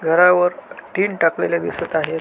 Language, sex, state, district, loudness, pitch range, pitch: Marathi, male, Maharashtra, Aurangabad, -18 LUFS, 165-180 Hz, 175 Hz